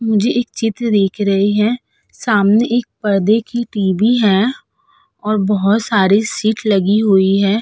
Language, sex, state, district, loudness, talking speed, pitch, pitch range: Hindi, female, Uttar Pradesh, Budaun, -15 LUFS, 150 wpm, 215 Hz, 200-235 Hz